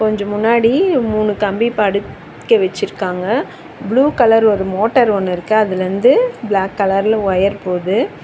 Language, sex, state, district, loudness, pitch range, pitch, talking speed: Tamil, female, Tamil Nadu, Chennai, -15 LUFS, 195-235 Hz, 215 Hz, 140 wpm